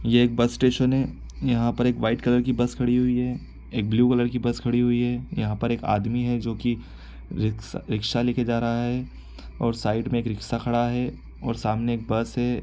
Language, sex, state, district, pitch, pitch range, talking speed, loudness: Hindi, male, Bihar, East Champaran, 120 Hz, 115-125 Hz, 225 wpm, -25 LUFS